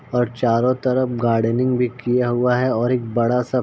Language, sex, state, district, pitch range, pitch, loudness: Hindi, male, Uttar Pradesh, Ghazipur, 120-125 Hz, 125 Hz, -19 LUFS